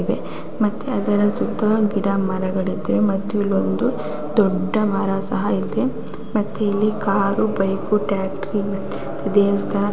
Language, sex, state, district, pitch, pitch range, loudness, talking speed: Kannada, female, Karnataka, Raichur, 200 Hz, 195-210 Hz, -20 LUFS, 140 wpm